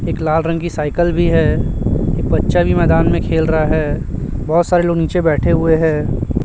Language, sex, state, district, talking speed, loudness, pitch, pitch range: Hindi, male, Chhattisgarh, Raipur, 205 wpm, -15 LUFS, 160 Hz, 155-170 Hz